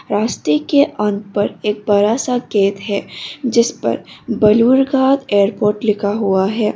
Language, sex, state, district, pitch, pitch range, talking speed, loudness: Hindi, female, Arunachal Pradesh, Longding, 210 Hz, 205-235 Hz, 140 wpm, -16 LUFS